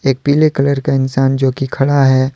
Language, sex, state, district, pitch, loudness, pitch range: Hindi, male, Jharkhand, Deoghar, 135 Hz, -14 LUFS, 135-140 Hz